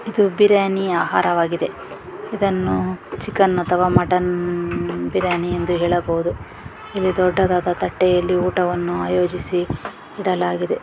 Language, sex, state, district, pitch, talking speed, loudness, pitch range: Kannada, female, Karnataka, Dakshina Kannada, 180 Hz, 95 wpm, -19 LUFS, 170-185 Hz